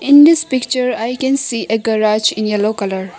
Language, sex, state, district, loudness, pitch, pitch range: English, female, Arunachal Pradesh, Longding, -14 LUFS, 225 Hz, 215-265 Hz